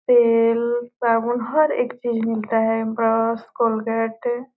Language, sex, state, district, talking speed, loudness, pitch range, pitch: Hindi, female, Bihar, Gopalganj, 130 wpm, -20 LUFS, 225-240 Hz, 230 Hz